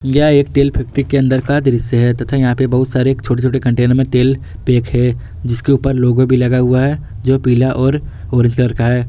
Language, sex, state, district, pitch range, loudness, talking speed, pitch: Hindi, male, Jharkhand, Garhwa, 120-135 Hz, -14 LUFS, 230 wpm, 130 Hz